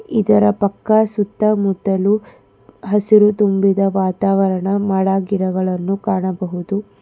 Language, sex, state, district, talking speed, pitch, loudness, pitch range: Kannada, female, Karnataka, Bangalore, 75 wpm, 195 Hz, -16 LUFS, 190-210 Hz